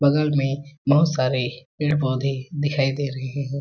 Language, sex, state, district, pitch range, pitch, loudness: Hindi, male, Chhattisgarh, Balrampur, 135-145 Hz, 140 Hz, -23 LUFS